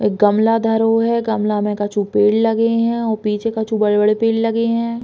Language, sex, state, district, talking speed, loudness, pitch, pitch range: Bundeli, female, Uttar Pradesh, Hamirpur, 200 wpm, -17 LUFS, 225 Hz, 210-225 Hz